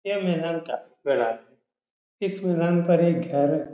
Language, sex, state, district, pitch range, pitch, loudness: Hindi, male, Uttar Pradesh, Etah, 165-180 Hz, 170 Hz, -24 LUFS